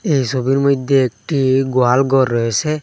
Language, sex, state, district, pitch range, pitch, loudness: Bengali, male, Assam, Hailakandi, 130-140 Hz, 135 Hz, -16 LUFS